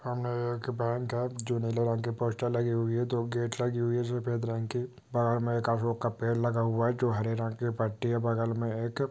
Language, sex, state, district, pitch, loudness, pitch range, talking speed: Hindi, male, West Bengal, Jalpaiguri, 120 Hz, -31 LUFS, 115-120 Hz, 245 wpm